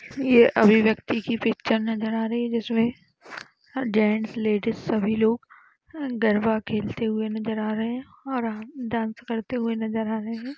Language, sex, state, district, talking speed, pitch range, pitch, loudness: Hindi, female, Uttar Pradesh, Budaun, 165 wpm, 220-235 Hz, 225 Hz, -24 LUFS